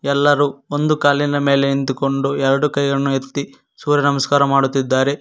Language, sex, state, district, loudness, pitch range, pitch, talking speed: Kannada, male, Karnataka, Koppal, -17 LUFS, 135-145 Hz, 140 Hz, 125 wpm